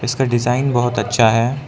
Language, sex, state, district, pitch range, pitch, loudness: Hindi, male, Arunachal Pradesh, Lower Dibang Valley, 115-125 Hz, 120 Hz, -16 LUFS